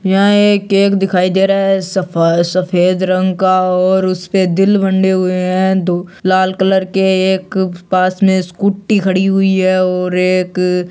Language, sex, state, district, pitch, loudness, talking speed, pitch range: Hindi, male, Rajasthan, Churu, 185 Hz, -13 LUFS, 170 wpm, 185-195 Hz